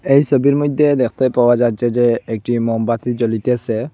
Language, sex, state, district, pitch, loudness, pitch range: Bengali, male, Assam, Hailakandi, 120 Hz, -16 LUFS, 115-135 Hz